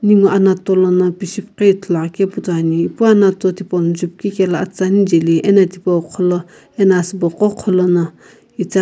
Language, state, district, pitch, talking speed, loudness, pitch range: Sumi, Nagaland, Kohima, 185 Hz, 170 wpm, -15 LUFS, 175-195 Hz